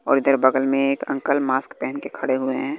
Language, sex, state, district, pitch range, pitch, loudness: Hindi, male, Bihar, West Champaran, 130-140 Hz, 135 Hz, -21 LUFS